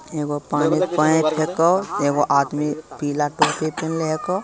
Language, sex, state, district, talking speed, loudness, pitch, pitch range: Hindi, male, Bihar, Begusarai, 135 wpm, -20 LUFS, 155 Hz, 145-160 Hz